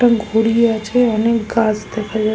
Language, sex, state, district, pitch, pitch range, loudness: Bengali, female, West Bengal, Malda, 225 Hz, 215-230 Hz, -16 LUFS